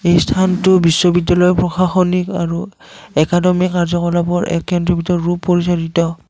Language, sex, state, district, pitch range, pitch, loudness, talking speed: Assamese, male, Assam, Kamrup Metropolitan, 170-180 Hz, 175 Hz, -15 LUFS, 105 wpm